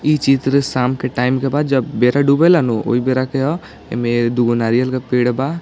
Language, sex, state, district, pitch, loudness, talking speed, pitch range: Hindi, male, Bihar, East Champaran, 130 Hz, -16 LUFS, 215 wpm, 120-140 Hz